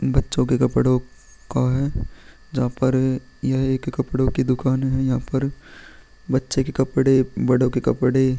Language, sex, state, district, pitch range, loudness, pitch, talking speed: Hindi, male, Chhattisgarh, Sukma, 125-135 Hz, -21 LUFS, 130 Hz, 150 wpm